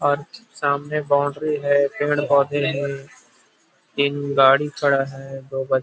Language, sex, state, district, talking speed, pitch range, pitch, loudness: Hindi, male, Chhattisgarh, Rajnandgaon, 125 wpm, 135-145 Hz, 140 Hz, -20 LUFS